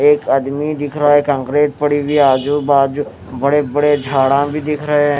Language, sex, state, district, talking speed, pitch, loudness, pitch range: Hindi, male, Haryana, Rohtak, 195 wpm, 145 Hz, -15 LUFS, 140-150 Hz